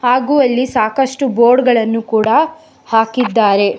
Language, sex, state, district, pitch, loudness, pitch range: Kannada, female, Karnataka, Bangalore, 245 Hz, -13 LUFS, 225-265 Hz